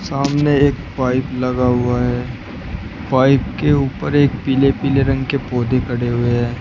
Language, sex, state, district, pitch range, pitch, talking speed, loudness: Hindi, male, Uttar Pradesh, Shamli, 120-140 Hz, 130 Hz, 165 wpm, -17 LUFS